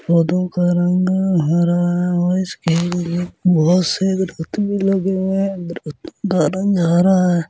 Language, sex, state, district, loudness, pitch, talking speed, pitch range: Hindi, male, Delhi, New Delhi, -17 LUFS, 180 Hz, 50 wpm, 170-190 Hz